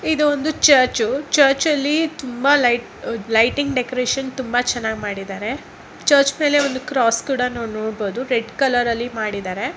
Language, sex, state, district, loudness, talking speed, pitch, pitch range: Kannada, female, Karnataka, Gulbarga, -19 LUFS, 130 wpm, 250 Hz, 230-280 Hz